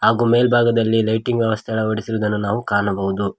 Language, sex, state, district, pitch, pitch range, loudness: Kannada, male, Karnataka, Koppal, 110 Hz, 105-115 Hz, -18 LUFS